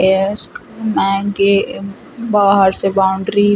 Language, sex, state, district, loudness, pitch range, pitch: Hindi, female, Chhattisgarh, Rajnandgaon, -15 LUFS, 195-205 Hz, 200 Hz